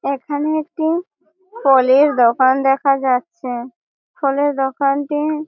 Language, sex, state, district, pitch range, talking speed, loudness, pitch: Bengali, female, West Bengal, Malda, 265-310 Hz, 90 wpm, -17 LUFS, 280 Hz